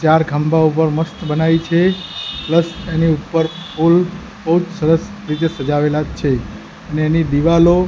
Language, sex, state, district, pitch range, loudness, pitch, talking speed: Gujarati, male, Gujarat, Gandhinagar, 155-170 Hz, -16 LUFS, 165 Hz, 135 wpm